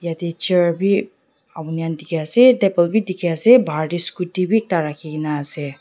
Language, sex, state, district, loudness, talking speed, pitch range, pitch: Nagamese, female, Nagaland, Dimapur, -18 LUFS, 185 wpm, 160-190 Hz, 170 Hz